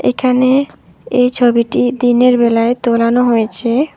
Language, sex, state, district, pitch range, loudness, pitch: Bengali, female, West Bengal, Alipurduar, 235-250 Hz, -13 LUFS, 245 Hz